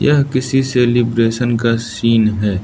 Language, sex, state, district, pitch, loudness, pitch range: Hindi, male, Arunachal Pradesh, Lower Dibang Valley, 115 Hz, -15 LUFS, 115-130 Hz